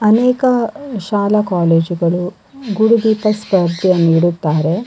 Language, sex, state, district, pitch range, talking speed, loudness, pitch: Kannada, female, Karnataka, Dakshina Kannada, 175-220 Hz, 100 wpm, -14 LUFS, 200 Hz